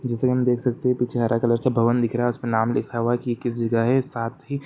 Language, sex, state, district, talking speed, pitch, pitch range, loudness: Hindi, male, Jharkhand, Jamtara, 230 wpm, 120 Hz, 115-125 Hz, -22 LUFS